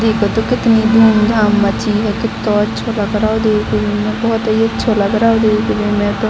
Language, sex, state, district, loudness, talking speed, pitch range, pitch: Hindi, female, Bihar, Gopalganj, -14 LUFS, 230 wpm, 210-225 Hz, 215 Hz